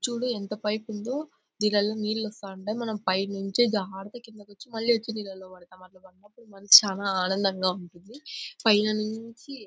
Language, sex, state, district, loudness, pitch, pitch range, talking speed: Telugu, female, Andhra Pradesh, Anantapur, -26 LUFS, 210 Hz, 195-225 Hz, 135 wpm